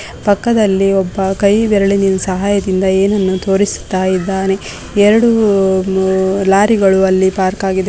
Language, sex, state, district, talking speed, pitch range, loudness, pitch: Kannada, female, Karnataka, Raichur, 105 wpm, 190-200 Hz, -13 LUFS, 195 Hz